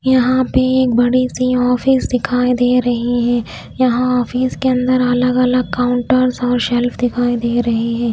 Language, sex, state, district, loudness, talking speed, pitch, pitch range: Hindi, female, Delhi, New Delhi, -15 LUFS, 160 wpm, 250 Hz, 245-255 Hz